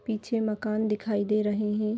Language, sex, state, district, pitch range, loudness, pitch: Kumaoni, female, Uttarakhand, Tehri Garhwal, 210-220 Hz, -28 LUFS, 215 Hz